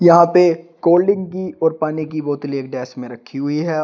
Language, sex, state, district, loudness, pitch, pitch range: Hindi, male, Uttar Pradesh, Shamli, -17 LUFS, 155 Hz, 140-170 Hz